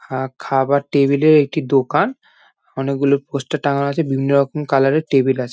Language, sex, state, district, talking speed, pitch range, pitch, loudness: Bengali, male, West Bengal, Jhargram, 185 wpm, 135-150 Hz, 140 Hz, -17 LUFS